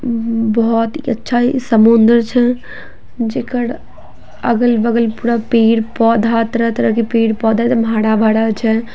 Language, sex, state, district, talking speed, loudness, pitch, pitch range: Maithili, female, Bihar, Samastipur, 105 wpm, -14 LUFS, 230 Hz, 225-240 Hz